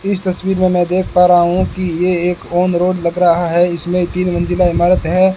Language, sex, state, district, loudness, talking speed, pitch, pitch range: Hindi, male, Rajasthan, Bikaner, -14 LUFS, 235 wpm, 180 Hz, 175-185 Hz